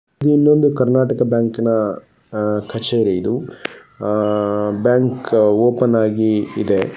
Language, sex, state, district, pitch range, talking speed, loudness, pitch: Kannada, male, Karnataka, Gulbarga, 105-125 Hz, 105 wpm, -17 LUFS, 115 Hz